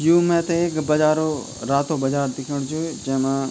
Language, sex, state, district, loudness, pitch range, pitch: Garhwali, male, Uttarakhand, Tehri Garhwal, -21 LUFS, 135-160 Hz, 150 Hz